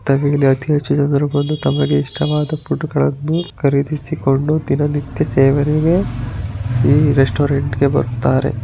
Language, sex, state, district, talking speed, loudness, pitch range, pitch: Kannada, male, Karnataka, Mysore, 75 wpm, -16 LUFS, 130-150 Hz, 140 Hz